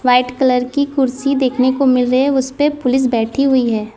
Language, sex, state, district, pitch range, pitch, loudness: Hindi, female, Gujarat, Valsad, 250-275 Hz, 260 Hz, -15 LUFS